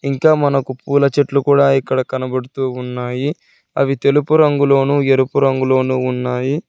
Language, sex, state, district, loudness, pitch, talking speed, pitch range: Telugu, male, Telangana, Hyderabad, -16 LUFS, 135 Hz, 125 wpm, 130-140 Hz